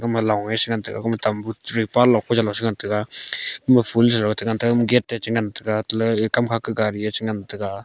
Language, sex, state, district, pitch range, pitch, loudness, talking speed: Wancho, male, Arunachal Pradesh, Longding, 105-115 Hz, 110 Hz, -21 LUFS, 170 wpm